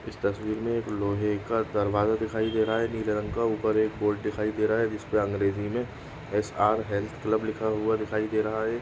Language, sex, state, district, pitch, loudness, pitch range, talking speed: Hindi, male, West Bengal, Kolkata, 110 Hz, -28 LUFS, 105-110 Hz, 230 wpm